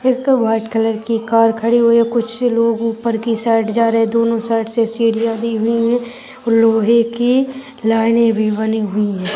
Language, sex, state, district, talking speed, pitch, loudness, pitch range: Hindi, female, Rajasthan, Churu, 190 wpm, 230 Hz, -16 LUFS, 225-235 Hz